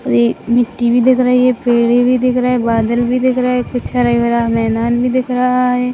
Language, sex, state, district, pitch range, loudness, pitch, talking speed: Hindi, female, Chhattisgarh, Rajnandgaon, 235-250 Hz, -14 LUFS, 245 Hz, 230 wpm